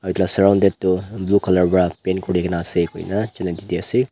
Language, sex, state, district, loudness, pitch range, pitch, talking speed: Nagamese, male, Nagaland, Dimapur, -19 LUFS, 90-100 Hz, 95 Hz, 205 wpm